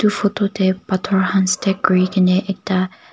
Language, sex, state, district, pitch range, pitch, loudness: Nagamese, female, Nagaland, Kohima, 185-200 Hz, 190 Hz, -18 LUFS